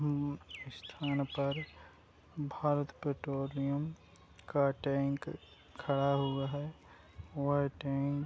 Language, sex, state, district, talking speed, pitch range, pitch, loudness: Hindi, male, Bihar, Gopalganj, 95 wpm, 135-145 Hz, 140 Hz, -36 LUFS